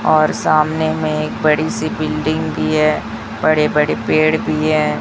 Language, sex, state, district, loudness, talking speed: Hindi, female, Chhattisgarh, Raipur, -16 LUFS, 165 wpm